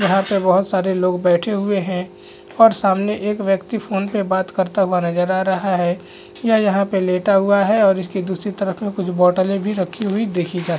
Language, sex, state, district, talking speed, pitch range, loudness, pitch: Hindi, male, Chhattisgarh, Bastar, 210 wpm, 185-200 Hz, -18 LUFS, 195 Hz